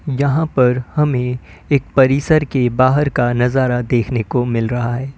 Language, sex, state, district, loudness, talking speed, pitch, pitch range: Hindi, male, Uttar Pradesh, Lalitpur, -16 LUFS, 160 wpm, 125 Hz, 120-140 Hz